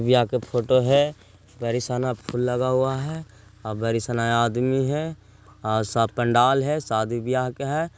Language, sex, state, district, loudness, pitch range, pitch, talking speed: Hindi, male, Bihar, Jahanabad, -23 LUFS, 115-135 Hz, 125 Hz, 180 wpm